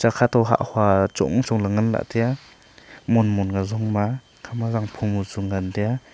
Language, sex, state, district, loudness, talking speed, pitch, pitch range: Wancho, male, Arunachal Pradesh, Longding, -22 LUFS, 135 wpm, 110 Hz, 100-115 Hz